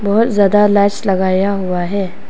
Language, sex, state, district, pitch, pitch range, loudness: Hindi, female, Arunachal Pradesh, Papum Pare, 200 Hz, 190-205 Hz, -14 LUFS